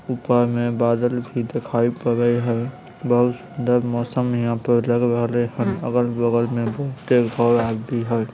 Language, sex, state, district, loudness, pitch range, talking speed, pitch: Maithili, male, Bihar, Samastipur, -21 LUFS, 120-125 Hz, 120 wpm, 120 Hz